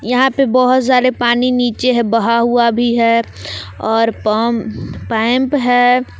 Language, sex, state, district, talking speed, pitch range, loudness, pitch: Hindi, female, Jharkhand, Palamu, 145 wpm, 230-250 Hz, -14 LUFS, 240 Hz